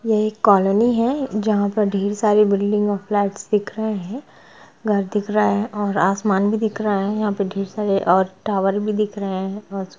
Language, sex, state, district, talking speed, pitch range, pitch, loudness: Hindi, female, Jharkhand, Jamtara, 205 wpm, 195-215 Hz, 205 Hz, -20 LUFS